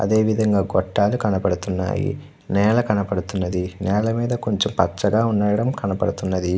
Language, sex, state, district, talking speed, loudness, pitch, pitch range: Telugu, male, Andhra Pradesh, Krishna, 120 wpm, -21 LUFS, 100 Hz, 95-110 Hz